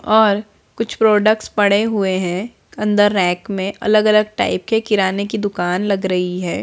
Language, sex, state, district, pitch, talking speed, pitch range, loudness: Hindi, female, Bihar, Araria, 205 Hz, 165 wpm, 190-215 Hz, -17 LUFS